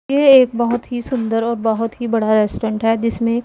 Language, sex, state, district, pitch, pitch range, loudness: Hindi, female, Punjab, Pathankot, 230 Hz, 225-240 Hz, -17 LUFS